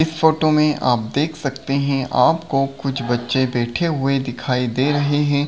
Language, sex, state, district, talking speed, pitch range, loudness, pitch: Hindi, male, Bihar, Begusarai, 175 wpm, 130-150 Hz, -19 LUFS, 140 Hz